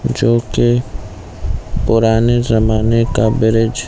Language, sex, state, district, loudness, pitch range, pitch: Hindi, male, Chhattisgarh, Bilaspur, -14 LUFS, 105-115 Hz, 115 Hz